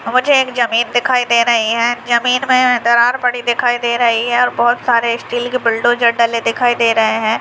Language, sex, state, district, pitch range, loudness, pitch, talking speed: Hindi, female, Bihar, Madhepura, 235-245 Hz, -14 LUFS, 240 Hz, 220 wpm